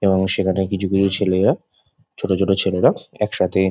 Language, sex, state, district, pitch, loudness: Bengali, male, West Bengal, Jhargram, 95 Hz, -19 LUFS